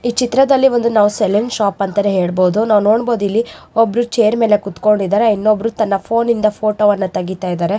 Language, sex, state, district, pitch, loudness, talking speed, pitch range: Kannada, female, Karnataka, Raichur, 215 Hz, -15 LUFS, 170 wpm, 200-230 Hz